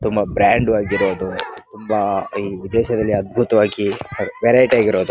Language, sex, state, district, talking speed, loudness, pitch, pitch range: Kannada, male, Karnataka, Bijapur, 115 wpm, -18 LUFS, 105 Hz, 100-115 Hz